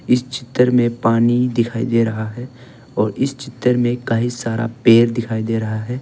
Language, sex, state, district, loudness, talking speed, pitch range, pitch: Hindi, male, Arunachal Pradesh, Longding, -18 LUFS, 190 wpm, 115-125 Hz, 120 Hz